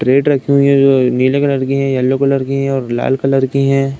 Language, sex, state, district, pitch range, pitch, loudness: Hindi, male, Uttar Pradesh, Deoria, 135-140 Hz, 135 Hz, -13 LUFS